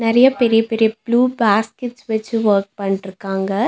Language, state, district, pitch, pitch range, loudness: Tamil, Tamil Nadu, Nilgiris, 225 Hz, 200-235 Hz, -17 LUFS